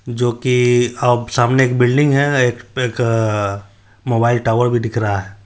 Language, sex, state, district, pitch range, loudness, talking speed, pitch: Hindi, male, Bihar, Supaul, 115-125 Hz, -16 LUFS, 155 wpm, 120 Hz